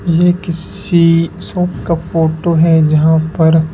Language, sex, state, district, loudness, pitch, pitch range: Hindi, male, Rajasthan, Bikaner, -13 LUFS, 165 Hz, 160-170 Hz